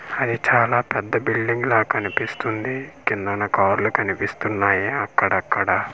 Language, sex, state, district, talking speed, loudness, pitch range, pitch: Telugu, male, Andhra Pradesh, Manyam, 90 wpm, -21 LUFS, 105-120 Hz, 115 Hz